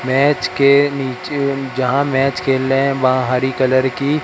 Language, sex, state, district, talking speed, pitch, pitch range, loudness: Hindi, male, Madhya Pradesh, Katni, 170 wpm, 135 Hz, 130-140 Hz, -16 LUFS